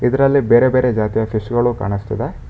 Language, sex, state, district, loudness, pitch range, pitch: Kannada, male, Karnataka, Bangalore, -16 LUFS, 110-130 Hz, 120 Hz